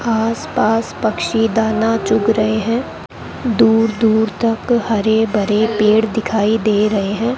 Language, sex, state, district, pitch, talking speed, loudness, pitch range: Hindi, male, Rajasthan, Bikaner, 220 Hz, 130 wpm, -16 LUFS, 215-225 Hz